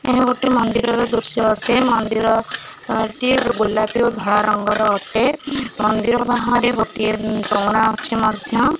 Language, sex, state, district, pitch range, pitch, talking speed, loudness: Odia, female, Odisha, Khordha, 215-245 Hz, 225 Hz, 125 wpm, -17 LUFS